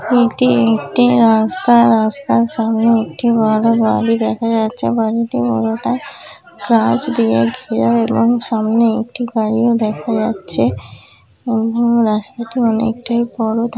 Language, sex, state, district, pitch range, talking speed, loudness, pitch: Bengali, female, West Bengal, Kolkata, 210-235 Hz, 105 wpm, -15 LUFS, 225 Hz